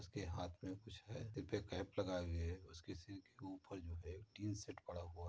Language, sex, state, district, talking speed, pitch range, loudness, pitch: Hindi, male, Uttar Pradesh, Muzaffarnagar, 240 wpm, 90-105 Hz, -49 LUFS, 95 Hz